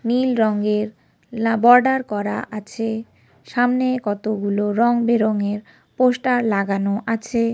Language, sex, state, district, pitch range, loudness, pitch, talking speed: Bengali, female, West Bengal, North 24 Parganas, 210-245 Hz, -20 LUFS, 225 Hz, 110 wpm